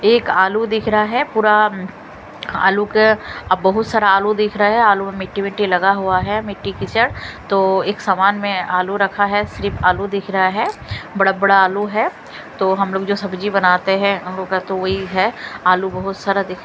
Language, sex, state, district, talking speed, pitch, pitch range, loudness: Hindi, female, Delhi, New Delhi, 200 wpm, 195 Hz, 190-205 Hz, -17 LUFS